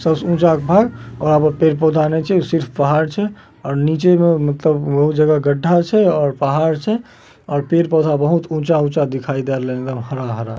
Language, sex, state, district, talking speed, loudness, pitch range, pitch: Magahi, male, Bihar, Samastipur, 200 wpm, -16 LUFS, 145-170 Hz, 155 Hz